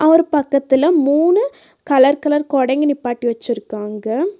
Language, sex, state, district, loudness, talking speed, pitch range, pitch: Tamil, female, Tamil Nadu, Nilgiris, -16 LUFS, 110 wpm, 245-310 Hz, 280 Hz